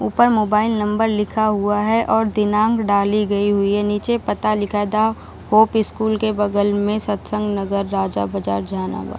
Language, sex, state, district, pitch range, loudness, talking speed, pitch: Hindi, female, Bihar, Jahanabad, 200-220 Hz, -19 LUFS, 175 wpm, 210 Hz